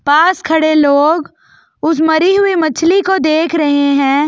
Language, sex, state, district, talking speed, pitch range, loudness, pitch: Hindi, female, Delhi, New Delhi, 170 wpm, 295-335 Hz, -12 LUFS, 315 Hz